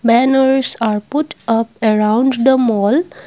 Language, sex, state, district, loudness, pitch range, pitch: English, female, Assam, Kamrup Metropolitan, -14 LUFS, 220-265 Hz, 240 Hz